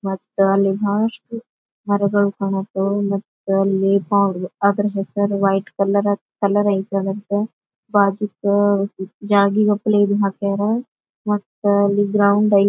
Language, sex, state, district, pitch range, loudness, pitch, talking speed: Kannada, female, Karnataka, Bijapur, 195-205 Hz, -19 LUFS, 200 Hz, 105 wpm